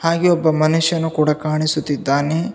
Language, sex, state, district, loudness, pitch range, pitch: Kannada, male, Karnataka, Bidar, -17 LUFS, 155-165 Hz, 155 Hz